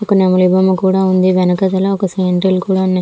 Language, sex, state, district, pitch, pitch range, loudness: Telugu, female, Andhra Pradesh, Visakhapatnam, 190 Hz, 185-190 Hz, -13 LUFS